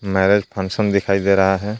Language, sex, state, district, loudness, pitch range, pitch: Hindi, male, Jharkhand, Garhwa, -17 LUFS, 95-100 Hz, 100 Hz